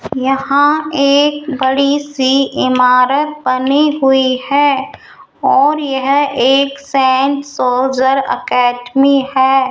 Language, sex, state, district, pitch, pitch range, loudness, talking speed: Hindi, female, Rajasthan, Jaipur, 275 Hz, 260-285 Hz, -13 LUFS, 95 wpm